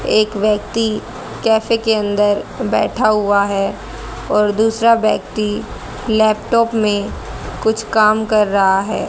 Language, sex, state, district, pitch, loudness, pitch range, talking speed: Hindi, female, Haryana, Rohtak, 215 Hz, -16 LUFS, 205-220 Hz, 120 wpm